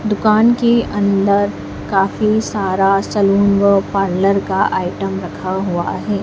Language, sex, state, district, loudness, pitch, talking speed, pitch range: Hindi, female, Madhya Pradesh, Dhar, -15 LUFS, 200 Hz, 125 wpm, 195-210 Hz